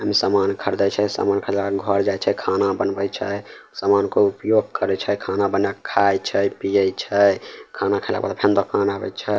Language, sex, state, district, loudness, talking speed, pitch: Maithili, male, Bihar, Samastipur, -21 LUFS, 185 wpm, 100 Hz